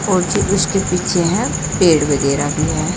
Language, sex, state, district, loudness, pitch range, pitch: Hindi, female, Uttar Pradesh, Saharanpur, -16 LUFS, 155-185 Hz, 175 Hz